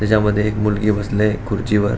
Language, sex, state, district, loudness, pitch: Marathi, male, Goa, North and South Goa, -18 LUFS, 105 Hz